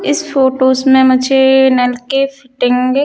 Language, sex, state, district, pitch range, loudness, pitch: Hindi, female, Haryana, Charkhi Dadri, 255-270 Hz, -11 LUFS, 265 Hz